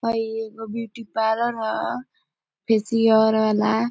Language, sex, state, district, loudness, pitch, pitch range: Bhojpuri, female, Bihar, Gopalganj, -22 LUFS, 225 Hz, 220-230 Hz